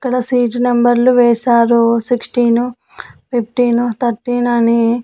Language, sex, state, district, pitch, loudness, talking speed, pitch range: Telugu, female, Andhra Pradesh, Annamaya, 240 Hz, -14 LUFS, 95 wpm, 235-245 Hz